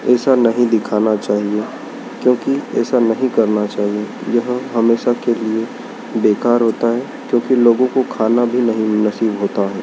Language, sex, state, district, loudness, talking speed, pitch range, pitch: Hindi, male, Madhya Pradesh, Dhar, -16 LUFS, 150 wpm, 105-120 Hz, 115 Hz